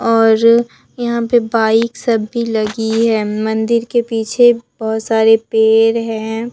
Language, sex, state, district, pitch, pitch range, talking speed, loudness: Hindi, female, Bihar, Katihar, 225 Hz, 220-235 Hz, 130 wpm, -14 LUFS